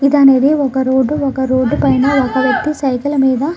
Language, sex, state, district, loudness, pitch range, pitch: Telugu, female, Andhra Pradesh, Krishna, -13 LUFS, 265-285 Hz, 275 Hz